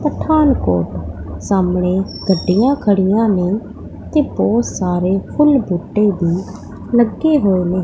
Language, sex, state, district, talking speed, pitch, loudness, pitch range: Punjabi, female, Punjab, Pathankot, 105 wpm, 195 Hz, -16 LUFS, 180-235 Hz